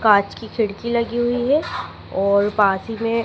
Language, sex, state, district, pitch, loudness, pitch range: Hindi, female, Madhya Pradesh, Dhar, 225 Hz, -20 LUFS, 200-240 Hz